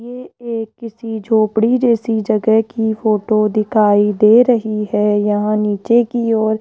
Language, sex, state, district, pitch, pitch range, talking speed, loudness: Hindi, female, Rajasthan, Jaipur, 220 Hz, 215-230 Hz, 155 wpm, -15 LUFS